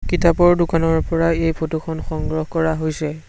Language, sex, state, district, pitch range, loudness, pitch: Assamese, male, Assam, Sonitpur, 160-165 Hz, -19 LUFS, 165 Hz